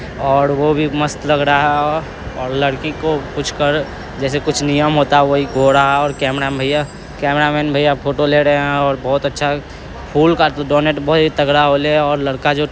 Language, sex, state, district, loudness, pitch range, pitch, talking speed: Hindi, male, Bihar, Araria, -15 LUFS, 140-150 Hz, 145 Hz, 190 wpm